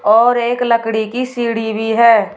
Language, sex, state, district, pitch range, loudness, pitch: Hindi, female, Uttar Pradesh, Shamli, 220-240 Hz, -15 LUFS, 230 Hz